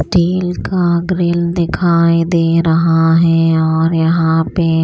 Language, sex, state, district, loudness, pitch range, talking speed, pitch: Hindi, female, Maharashtra, Washim, -13 LUFS, 165-170 Hz, 135 wpm, 165 Hz